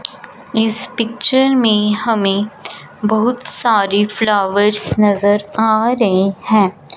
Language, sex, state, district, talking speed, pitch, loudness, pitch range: Hindi, female, Punjab, Fazilka, 95 wpm, 215 Hz, -15 LUFS, 205-230 Hz